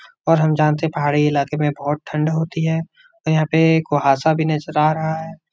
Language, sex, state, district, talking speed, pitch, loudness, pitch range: Hindi, male, Uttar Pradesh, Etah, 230 wpm, 155 Hz, -18 LUFS, 150-160 Hz